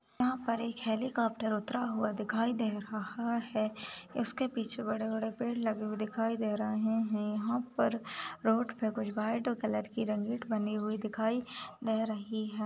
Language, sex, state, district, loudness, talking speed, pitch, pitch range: Hindi, female, Maharashtra, Nagpur, -34 LUFS, 170 wpm, 220 Hz, 215-235 Hz